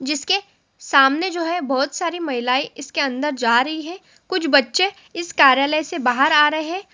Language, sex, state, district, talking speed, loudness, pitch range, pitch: Hindi, female, Rajasthan, Churu, 180 wpm, -19 LUFS, 275-345 Hz, 300 Hz